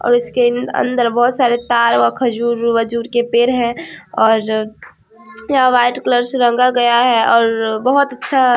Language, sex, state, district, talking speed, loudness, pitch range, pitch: Hindi, female, Bihar, Vaishali, 160 wpm, -14 LUFS, 230-245 Hz, 240 Hz